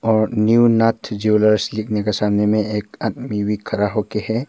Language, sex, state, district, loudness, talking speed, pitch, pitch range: Hindi, male, Arunachal Pradesh, Papum Pare, -18 LUFS, 185 wpm, 105 Hz, 105-110 Hz